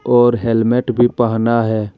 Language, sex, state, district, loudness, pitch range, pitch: Hindi, male, Jharkhand, Deoghar, -15 LUFS, 115-120 Hz, 115 Hz